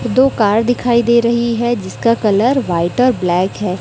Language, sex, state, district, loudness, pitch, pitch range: Hindi, female, Chhattisgarh, Raipur, -14 LUFS, 235 Hz, 205-240 Hz